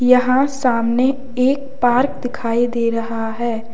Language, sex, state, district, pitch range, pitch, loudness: Hindi, male, Uttar Pradesh, Lalitpur, 230-260 Hz, 250 Hz, -18 LUFS